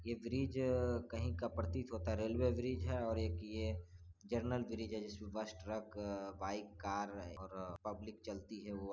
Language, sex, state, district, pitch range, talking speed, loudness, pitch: Hindi, male, Bihar, Saran, 95-115 Hz, 170 wpm, -42 LUFS, 105 Hz